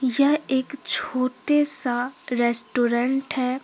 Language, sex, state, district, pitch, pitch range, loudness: Hindi, female, Jharkhand, Deoghar, 255 Hz, 245-280 Hz, -19 LUFS